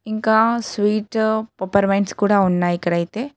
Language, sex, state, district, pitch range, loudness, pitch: Telugu, female, Telangana, Hyderabad, 195-220 Hz, -19 LUFS, 210 Hz